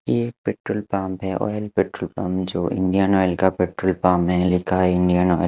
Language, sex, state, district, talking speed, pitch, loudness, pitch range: Hindi, male, Haryana, Charkhi Dadri, 230 wpm, 95 Hz, -21 LUFS, 90-95 Hz